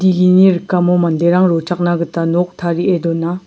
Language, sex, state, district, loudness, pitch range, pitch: Garo, male, Meghalaya, South Garo Hills, -14 LUFS, 170-180 Hz, 175 Hz